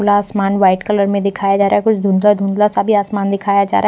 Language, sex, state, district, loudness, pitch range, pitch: Hindi, female, Bihar, West Champaran, -14 LUFS, 195-205 Hz, 200 Hz